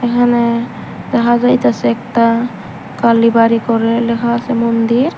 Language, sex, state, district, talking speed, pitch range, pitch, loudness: Bengali, female, Tripura, Unakoti, 105 wpm, 230-240 Hz, 235 Hz, -13 LUFS